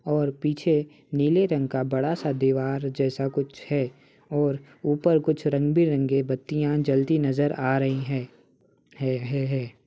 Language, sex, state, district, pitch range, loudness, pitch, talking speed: Hindi, male, Uttar Pradesh, Ghazipur, 135-150 Hz, -25 LUFS, 140 Hz, 160 wpm